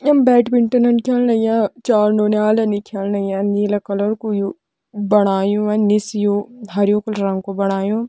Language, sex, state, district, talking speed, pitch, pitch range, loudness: Kumaoni, female, Uttarakhand, Tehri Garhwal, 150 wpm, 210 Hz, 200-225 Hz, -17 LUFS